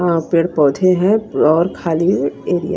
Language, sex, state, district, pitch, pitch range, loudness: Hindi, female, Punjab, Kapurthala, 175 Hz, 165-185 Hz, -15 LUFS